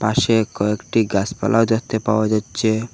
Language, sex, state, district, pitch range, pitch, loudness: Bengali, male, Assam, Hailakandi, 105-115 Hz, 110 Hz, -19 LUFS